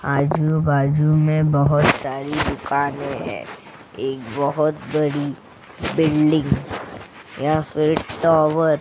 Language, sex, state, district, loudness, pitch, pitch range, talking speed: Hindi, female, Goa, North and South Goa, -20 LUFS, 150 Hz, 140-155 Hz, 100 wpm